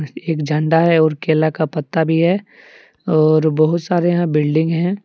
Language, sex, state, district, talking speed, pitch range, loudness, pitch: Hindi, male, Jharkhand, Deoghar, 180 wpm, 155-175 Hz, -16 LUFS, 160 Hz